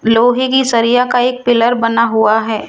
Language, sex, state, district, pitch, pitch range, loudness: Hindi, female, Rajasthan, Jaipur, 235 Hz, 225-245 Hz, -12 LUFS